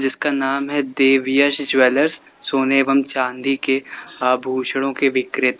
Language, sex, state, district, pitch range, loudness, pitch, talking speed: Hindi, male, Uttar Pradesh, Lalitpur, 130-140 Hz, -17 LUFS, 135 Hz, 130 wpm